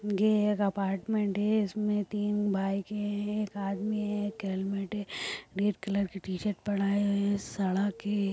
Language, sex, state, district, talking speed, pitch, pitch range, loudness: Hindi, female, Bihar, Samastipur, 165 wpm, 205 Hz, 195-210 Hz, -31 LUFS